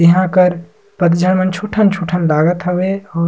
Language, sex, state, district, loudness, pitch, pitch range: Surgujia, male, Chhattisgarh, Sarguja, -14 LUFS, 180 Hz, 175-190 Hz